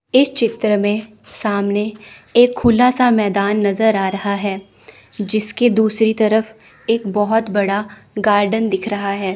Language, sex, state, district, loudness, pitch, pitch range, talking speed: Hindi, female, Chandigarh, Chandigarh, -17 LUFS, 215 Hz, 205-225 Hz, 140 wpm